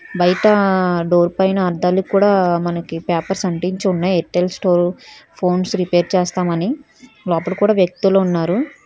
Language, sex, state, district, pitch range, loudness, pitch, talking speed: Telugu, female, Telangana, Hyderabad, 175-200 Hz, -17 LUFS, 185 Hz, 120 wpm